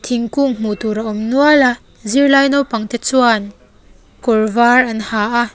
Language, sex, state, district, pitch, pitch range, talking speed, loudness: Mizo, female, Mizoram, Aizawl, 235 Hz, 220-265 Hz, 175 wpm, -14 LUFS